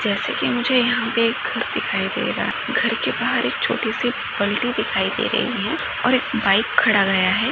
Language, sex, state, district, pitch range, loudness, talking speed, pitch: Hindi, female, Rajasthan, Nagaur, 205-245 Hz, -20 LUFS, 205 wpm, 230 Hz